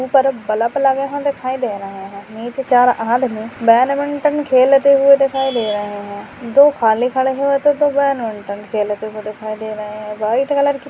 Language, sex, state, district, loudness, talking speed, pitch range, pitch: Hindi, female, Bihar, Purnia, -16 LUFS, 195 wpm, 215-275 Hz, 250 Hz